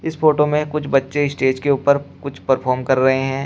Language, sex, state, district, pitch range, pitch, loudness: Hindi, male, Uttar Pradesh, Shamli, 130-150 Hz, 140 Hz, -18 LUFS